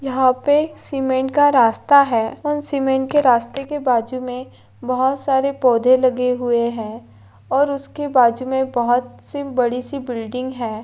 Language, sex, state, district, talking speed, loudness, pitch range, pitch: Hindi, female, Maharashtra, Pune, 160 wpm, -18 LUFS, 240-275 Hz, 255 Hz